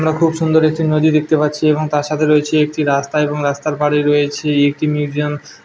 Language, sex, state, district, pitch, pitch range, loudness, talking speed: Bengali, male, West Bengal, Malda, 150 Hz, 145-155 Hz, -15 LUFS, 210 wpm